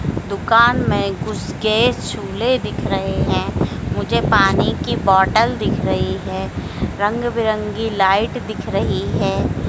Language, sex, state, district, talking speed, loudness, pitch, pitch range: Hindi, female, Madhya Pradesh, Dhar, 130 wpm, -18 LUFS, 220 Hz, 205-235 Hz